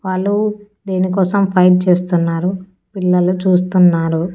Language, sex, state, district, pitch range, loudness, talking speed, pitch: Telugu, female, Andhra Pradesh, Annamaya, 180-190 Hz, -15 LUFS, 85 wpm, 185 Hz